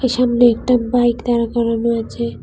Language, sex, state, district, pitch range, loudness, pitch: Bengali, female, Tripura, West Tripura, 230-245 Hz, -16 LUFS, 235 Hz